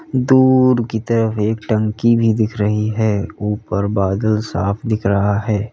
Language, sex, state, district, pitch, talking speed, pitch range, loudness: Hindi, male, Uttar Pradesh, Lalitpur, 110 Hz, 155 wpm, 105-115 Hz, -17 LUFS